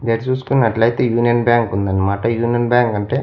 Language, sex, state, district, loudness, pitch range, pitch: Telugu, male, Andhra Pradesh, Annamaya, -16 LUFS, 110-120 Hz, 120 Hz